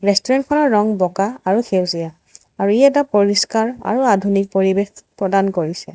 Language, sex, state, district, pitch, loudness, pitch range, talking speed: Assamese, female, Assam, Sonitpur, 200 Hz, -17 LUFS, 195-225 Hz, 140 wpm